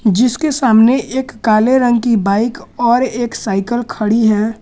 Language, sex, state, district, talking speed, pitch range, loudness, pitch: Hindi, male, Jharkhand, Garhwa, 155 wpm, 215-245 Hz, -14 LUFS, 235 Hz